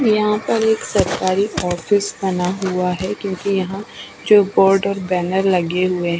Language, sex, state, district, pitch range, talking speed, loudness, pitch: Hindi, female, Odisha, Khordha, 180-200 Hz, 165 wpm, -18 LUFS, 195 Hz